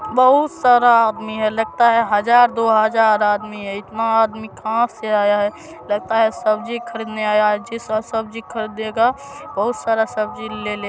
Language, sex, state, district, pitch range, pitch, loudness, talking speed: Hindi, male, Bihar, Supaul, 215-230 Hz, 220 Hz, -18 LUFS, 170 wpm